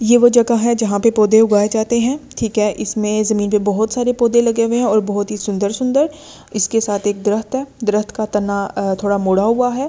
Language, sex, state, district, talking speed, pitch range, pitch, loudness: Hindi, female, Delhi, New Delhi, 230 wpm, 205-235 Hz, 220 Hz, -16 LUFS